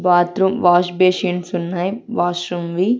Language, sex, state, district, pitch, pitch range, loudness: Telugu, female, Andhra Pradesh, Sri Satya Sai, 180 Hz, 175-190 Hz, -18 LUFS